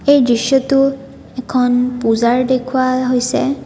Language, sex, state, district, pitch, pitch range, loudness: Assamese, female, Assam, Kamrup Metropolitan, 255 Hz, 245-270 Hz, -15 LUFS